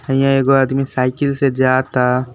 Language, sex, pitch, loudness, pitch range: Bhojpuri, male, 135 Hz, -15 LUFS, 130-135 Hz